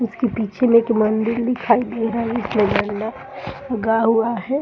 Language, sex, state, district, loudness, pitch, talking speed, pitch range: Hindi, male, Bihar, East Champaran, -19 LUFS, 230 Hz, 155 wpm, 225-240 Hz